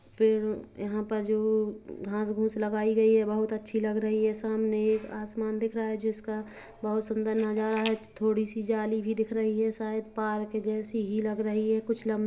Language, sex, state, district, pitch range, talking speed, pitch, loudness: Hindi, female, Chhattisgarh, Kabirdham, 215-220 Hz, 200 wpm, 220 Hz, -29 LUFS